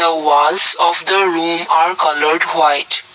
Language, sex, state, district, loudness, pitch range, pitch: English, male, Assam, Kamrup Metropolitan, -13 LUFS, 155-175 Hz, 170 Hz